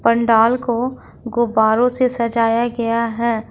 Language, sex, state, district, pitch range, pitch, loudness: Hindi, female, Jharkhand, Ranchi, 230-240 Hz, 235 Hz, -17 LUFS